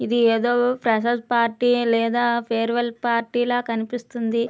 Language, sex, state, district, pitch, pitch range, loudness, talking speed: Telugu, female, Andhra Pradesh, Krishna, 235 Hz, 230-240 Hz, -21 LUFS, 120 wpm